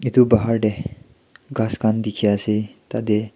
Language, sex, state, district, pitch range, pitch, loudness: Nagamese, male, Nagaland, Kohima, 105-115 Hz, 110 Hz, -20 LUFS